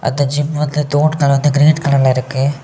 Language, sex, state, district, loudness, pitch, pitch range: Tamil, male, Tamil Nadu, Kanyakumari, -14 LUFS, 145 Hz, 135-150 Hz